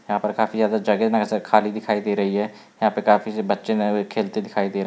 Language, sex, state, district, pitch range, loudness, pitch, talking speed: Hindi, male, Bihar, Gaya, 105-110 Hz, -22 LUFS, 105 Hz, 270 wpm